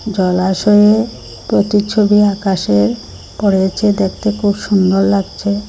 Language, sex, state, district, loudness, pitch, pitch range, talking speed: Bengali, female, Assam, Hailakandi, -14 LUFS, 200 Hz, 190-210 Hz, 85 wpm